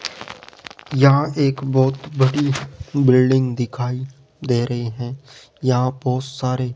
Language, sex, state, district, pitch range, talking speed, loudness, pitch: Hindi, male, Rajasthan, Jaipur, 125-140 Hz, 115 wpm, -19 LUFS, 130 Hz